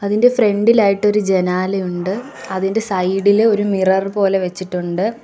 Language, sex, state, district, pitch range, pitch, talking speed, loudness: Malayalam, female, Kerala, Kollam, 185-210 Hz, 195 Hz, 135 wpm, -16 LUFS